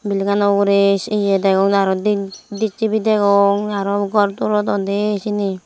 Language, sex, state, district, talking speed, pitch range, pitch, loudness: Chakma, female, Tripura, Unakoti, 140 wpm, 200-210 Hz, 200 Hz, -17 LUFS